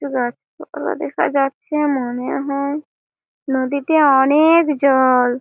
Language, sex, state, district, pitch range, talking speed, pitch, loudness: Bengali, female, West Bengal, Malda, 260-295 Hz, 110 wpm, 275 Hz, -17 LUFS